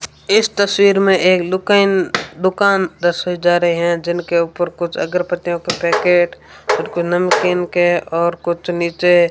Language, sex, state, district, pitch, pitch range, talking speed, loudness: Hindi, female, Rajasthan, Bikaner, 175 Hz, 170-185 Hz, 155 wpm, -16 LUFS